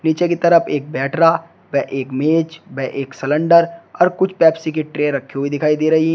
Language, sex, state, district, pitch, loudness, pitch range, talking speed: Hindi, male, Uttar Pradesh, Shamli, 160 Hz, -17 LUFS, 140-170 Hz, 205 wpm